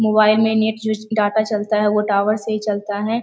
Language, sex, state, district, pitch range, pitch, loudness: Hindi, female, Bihar, Jamui, 210-220 Hz, 215 Hz, -18 LUFS